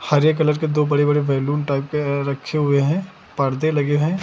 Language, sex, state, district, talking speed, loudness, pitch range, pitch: Hindi, male, Uttar Pradesh, Lucknow, 225 wpm, -20 LUFS, 140-155 Hz, 145 Hz